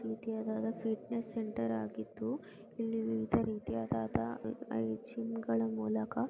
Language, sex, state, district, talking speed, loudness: Kannada, female, Karnataka, Gulbarga, 105 wpm, -37 LUFS